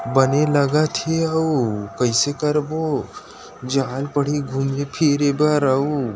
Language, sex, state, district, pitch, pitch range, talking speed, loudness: Chhattisgarhi, male, Chhattisgarh, Rajnandgaon, 145 Hz, 135-150 Hz, 90 wpm, -20 LUFS